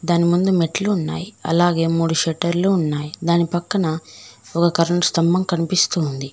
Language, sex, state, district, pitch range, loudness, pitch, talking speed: Telugu, female, Telangana, Mahabubabad, 165-175 Hz, -19 LUFS, 170 Hz, 140 wpm